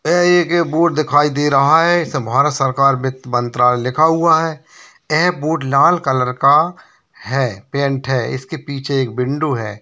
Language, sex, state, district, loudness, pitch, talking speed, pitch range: Hindi, male, Bihar, Bhagalpur, -16 LUFS, 140 Hz, 170 wpm, 130-160 Hz